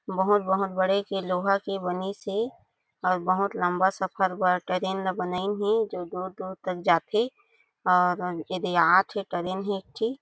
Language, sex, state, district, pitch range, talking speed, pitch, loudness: Chhattisgarhi, female, Chhattisgarh, Jashpur, 185-200 Hz, 165 wpm, 190 Hz, -26 LUFS